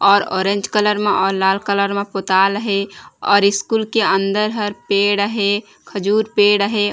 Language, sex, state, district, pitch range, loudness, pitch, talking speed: Chhattisgarhi, female, Chhattisgarh, Raigarh, 200-210 Hz, -17 LUFS, 200 Hz, 175 wpm